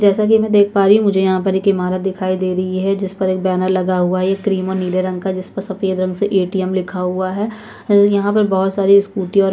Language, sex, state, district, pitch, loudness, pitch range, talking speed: Hindi, female, Chhattisgarh, Sukma, 190 Hz, -16 LUFS, 185-200 Hz, 265 wpm